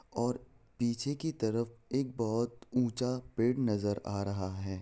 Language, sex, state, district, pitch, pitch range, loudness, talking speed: Hindi, male, Bihar, Saran, 120 Hz, 110-125 Hz, -34 LUFS, 150 wpm